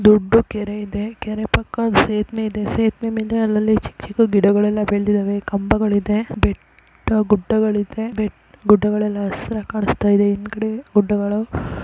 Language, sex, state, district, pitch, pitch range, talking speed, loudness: Kannada, female, Karnataka, Chamarajanagar, 210 Hz, 205-220 Hz, 115 wpm, -19 LUFS